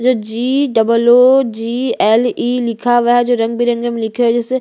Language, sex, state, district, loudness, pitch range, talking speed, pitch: Hindi, female, Chhattisgarh, Bastar, -14 LUFS, 230-245 Hz, 235 wpm, 240 Hz